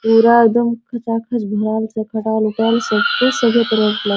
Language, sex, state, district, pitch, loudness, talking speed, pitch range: Hindi, female, Bihar, Araria, 225 Hz, -16 LUFS, 185 wpm, 220-235 Hz